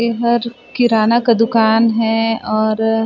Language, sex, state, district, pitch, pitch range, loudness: Chhattisgarhi, female, Chhattisgarh, Sarguja, 225 Hz, 225-235 Hz, -15 LUFS